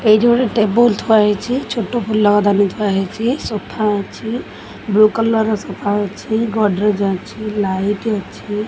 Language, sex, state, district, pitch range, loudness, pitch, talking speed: Odia, female, Odisha, Khordha, 205-225 Hz, -17 LUFS, 215 Hz, 145 wpm